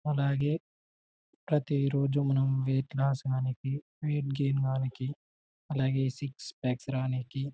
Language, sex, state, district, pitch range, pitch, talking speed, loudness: Telugu, male, Telangana, Karimnagar, 130-140 Hz, 135 Hz, 90 wpm, -31 LUFS